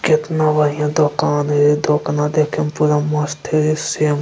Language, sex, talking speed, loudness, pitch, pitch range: Angika, male, 185 wpm, -17 LUFS, 150 Hz, 150-155 Hz